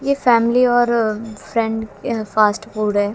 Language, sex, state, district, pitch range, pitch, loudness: Hindi, female, Haryana, Jhajjar, 215-240 Hz, 225 Hz, -18 LUFS